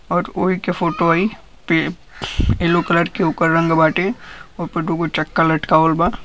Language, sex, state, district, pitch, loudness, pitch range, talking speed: Bhojpuri, male, Uttar Pradesh, Gorakhpur, 170 Hz, -18 LUFS, 165-180 Hz, 155 wpm